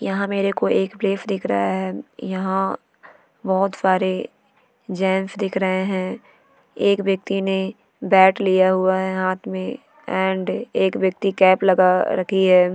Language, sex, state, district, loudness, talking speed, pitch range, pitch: Hindi, female, Chhattisgarh, Bilaspur, -20 LUFS, 145 wpm, 185-195 Hz, 190 Hz